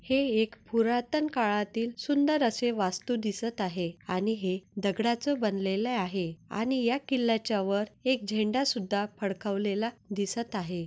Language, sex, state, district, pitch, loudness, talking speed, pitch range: Marathi, female, Maharashtra, Nagpur, 220 Hz, -30 LUFS, 130 wpm, 200-240 Hz